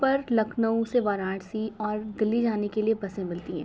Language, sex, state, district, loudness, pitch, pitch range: Hindi, female, Uttar Pradesh, Gorakhpur, -27 LUFS, 215 Hz, 200-225 Hz